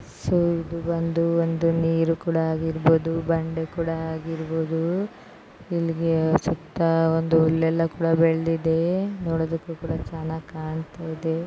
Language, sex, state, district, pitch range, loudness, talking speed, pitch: Kannada, female, Karnataka, Dharwad, 160-165 Hz, -24 LUFS, 105 wpm, 165 Hz